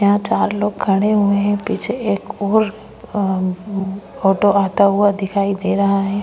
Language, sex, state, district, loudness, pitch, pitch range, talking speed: Hindi, female, Maharashtra, Chandrapur, -17 LUFS, 200 Hz, 195-205 Hz, 175 wpm